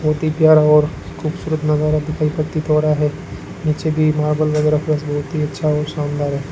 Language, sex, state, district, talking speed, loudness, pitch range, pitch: Hindi, male, Rajasthan, Bikaner, 195 wpm, -17 LUFS, 150-155 Hz, 150 Hz